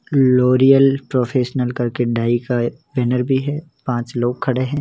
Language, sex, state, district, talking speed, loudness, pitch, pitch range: Hindi, male, Rajasthan, Jaisalmer, 150 wpm, -18 LUFS, 125 Hz, 120-135 Hz